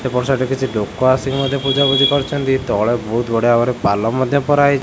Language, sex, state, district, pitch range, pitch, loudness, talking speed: Odia, male, Odisha, Khordha, 120-135 Hz, 130 Hz, -16 LUFS, 225 wpm